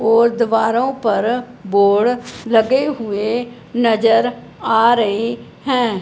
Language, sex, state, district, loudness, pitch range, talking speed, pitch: Hindi, male, Punjab, Fazilka, -16 LUFS, 220-245 Hz, 100 wpm, 230 Hz